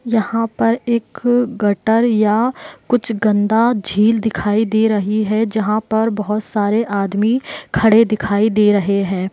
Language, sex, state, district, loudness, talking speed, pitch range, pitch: Hindi, female, Bihar, Muzaffarpur, -16 LUFS, 140 wpm, 210-230 Hz, 220 Hz